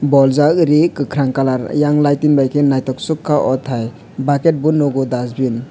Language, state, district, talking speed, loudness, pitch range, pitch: Kokborok, Tripura, West Tripura, 180 wpm, -15 LUFS, 130-150 Hz, 140 Hz